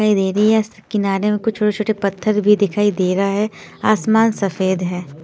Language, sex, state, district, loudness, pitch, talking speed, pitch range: Hindi, female, Odisha, Sambalpur, -17 LUFS, 205 Hz, 160 wpm, 195-215 Hz